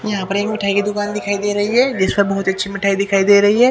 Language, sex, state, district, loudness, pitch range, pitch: Hindi, male, Haryana, Jhajjar, -16 LUFS, 200-205 Hz, 200 Hz